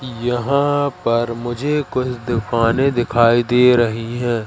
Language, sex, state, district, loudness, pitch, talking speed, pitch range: Hindi, male, Madhya Pradesh, Katni, -17 LUFS, 120 Hz, 120 wpm, 115-130 Hz